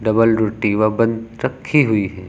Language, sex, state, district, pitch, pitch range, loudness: Hindi, male, Uttar Pradesh, Lucknow, 110 Hz, 110-115 Hz, -17 LUFS